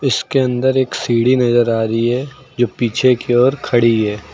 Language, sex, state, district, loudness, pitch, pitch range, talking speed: Hindi, male, Uttar Pradesh, Lucknow, -15 LUFS, 120 Hz, 115-130 Hz, 195 wpm